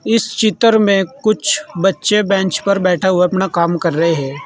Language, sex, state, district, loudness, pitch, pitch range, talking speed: Hindi, male, Uttar Pradesh, Saharanpur, -15 LUFS, 195 Hz, 175-215 Hz, 190 wpm